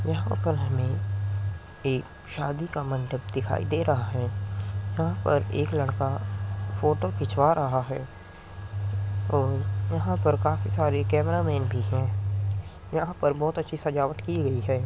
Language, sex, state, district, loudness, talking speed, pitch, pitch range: Hindi, male, Uttar Pradesh, Muzaffarnagar, -27 LUFS, 145 wpm, 105 Hz, 100-130 Hz